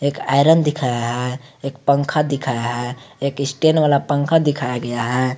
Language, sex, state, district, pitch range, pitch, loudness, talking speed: Hindi, male, Jharkhand, Garhwa, 125-145 Hz, 140 Hz, -19 LUFS, 165 wpm